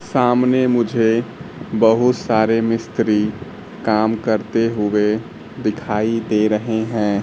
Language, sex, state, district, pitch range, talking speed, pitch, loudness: Hindi, male, Bihar, Kaimur, 105-115 Hz, 100 wpm, 110 Hz, -18 LUFS